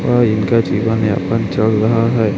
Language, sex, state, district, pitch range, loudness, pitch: Hindi, male, Chhattisgarh, Raipur, 110-115 Hz, -15 LUFS, 110 Hz